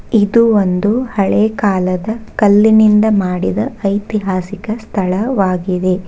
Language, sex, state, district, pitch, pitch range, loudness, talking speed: Kannada, female, Karnataka, Bangalore, 205 Hz, 190-220 Hz, -14 LUFS, 80 wpm